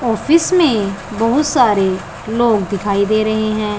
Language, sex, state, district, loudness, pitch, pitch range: Hindi, female, Punjab, Pathankot, -15 LUFS, 215 Hz, 205-240 Hz